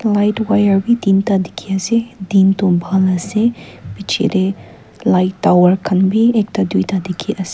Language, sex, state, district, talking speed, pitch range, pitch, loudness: Nagamese, female, Nagaland, Kohima, 165 wpm, 190-215 Hz, 195 Hz, -15 LUFS